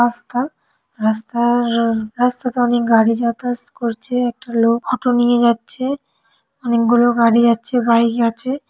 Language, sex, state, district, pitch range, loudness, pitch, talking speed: Bengali, female, West Bengal, North 24 Parganas, 230-245 Hz, -17 LUFS, 240 Hz, 125 wpm